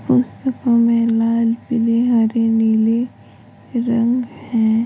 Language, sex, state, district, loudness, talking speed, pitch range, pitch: Hindi, female, Uttar Pradesh, Hamirpur, -17 LUFS, 100 wpm, 225-235 Hz, 230 Hz